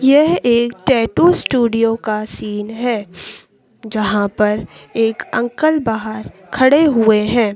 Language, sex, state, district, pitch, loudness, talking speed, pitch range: Hindi, female, Madhya Pradesh, Bhopal, 230 Hz, -15 LUFS, 120 wpm, 215-255 Hz